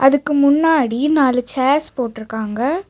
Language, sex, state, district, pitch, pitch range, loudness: Tamil, female, Tamil Nadu, Nilgiris, 270 Hz, 245-295 Hz, -16 LUFS